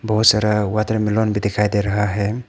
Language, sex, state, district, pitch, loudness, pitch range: Hindi, male, Arunachal Pradesh, Papum Pare, 105 Hz, -18 LUFS, 105-110 Hz